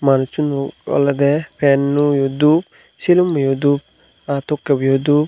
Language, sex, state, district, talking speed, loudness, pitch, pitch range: Chakma, male, Tripura, Unakoti, 170 wpm, -17 LUFS, 140 Hz, 140-150 Hz